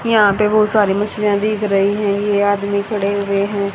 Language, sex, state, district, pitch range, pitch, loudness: Hindi, female, Haryana, Jhajjar, 200-210 Hz, 205 Hz, -16 LUFS